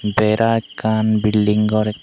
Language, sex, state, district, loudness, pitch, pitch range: Chakma, male, Tripura, Dhalai, -17 LUFS, 110 Hz, 105-110 Hz